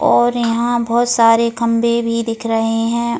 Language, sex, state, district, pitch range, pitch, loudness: Hindi, female, Goa, North and South Goa, 230-235 Hz, 235 Hz, -15 LUFS